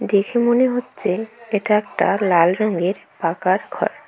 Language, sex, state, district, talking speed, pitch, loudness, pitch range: Bengali, female, West Bengal, Cooch Behar, 130 wpm, 210 Hz, -19 LUFS, 185-235 Hz